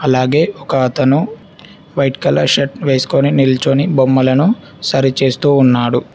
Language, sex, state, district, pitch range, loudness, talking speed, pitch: Telugu, male, Telangana, Hyderabad, 130-155 Hz, -13 LUFS, 115 wpm, 135 Hz